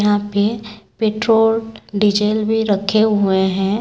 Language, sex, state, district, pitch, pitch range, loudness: Hindi, female, Chhattisgarh, Raipur, 210 Hz, 205-220 Hz, -17 LUFS